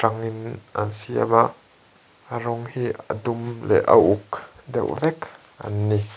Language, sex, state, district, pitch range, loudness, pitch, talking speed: Mizo, male, Mizoram, Aizawl, 105-120 Hz, -23 LUFS, 115 Hz, 145 wpm